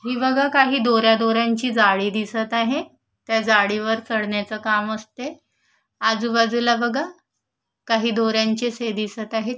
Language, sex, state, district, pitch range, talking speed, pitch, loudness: Marathi, female, Maharashtra, Solapur, 220-240 Hz, 130 wpm, 225 Hz, -20 LUFS